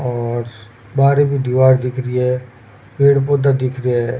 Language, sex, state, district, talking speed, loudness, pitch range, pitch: Rajasthani, male, Rajasthan, Churu, 170 wpm, -16 LUFS, 120-135 Hz, 125 Hz